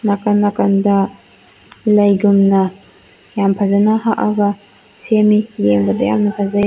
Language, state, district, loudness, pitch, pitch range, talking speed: Manipuri, Manipur, Imphal West, -15 LUFS, 205 Hz, 195-210 Hz, 90 wpm